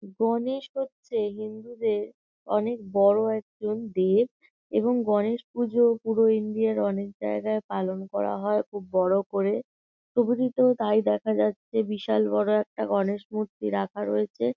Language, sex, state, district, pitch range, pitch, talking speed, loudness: Bengali, female, West Bengal, North 24 Parganas, 185-225 Hz, 210 Hz, 130 wpm, -26 LUFS